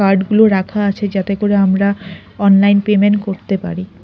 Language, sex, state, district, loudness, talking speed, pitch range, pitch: Bengali, female, Odisha, Khordha, -14 LUFS, 165 wpm, 195-205 Hz, 200 Hz